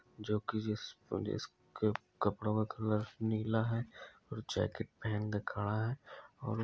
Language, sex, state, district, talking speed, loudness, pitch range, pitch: Hindi, male, Rajasthan, Nagaur, 145 wpm, -38 LUFS, 105-115 Hz, 110 Hz